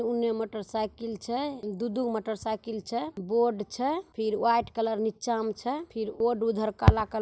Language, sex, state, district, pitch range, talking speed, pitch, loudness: Maithili, female, Bihar, Samastipur, 220-235 Hz, 175 wpm, 225 Hz, -29 LUFS